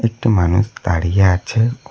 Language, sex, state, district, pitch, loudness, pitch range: Bengali, male, West Bengal, Cooch Behar, 100 Hz, -16 LUFS, 90-115 Hz